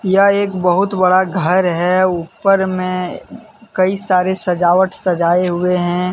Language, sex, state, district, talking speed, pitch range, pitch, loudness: Hindi, male, Jharkhand, Deoghar, 135 wpm, 180-190 Hz, 185 Hz, -15 LUFS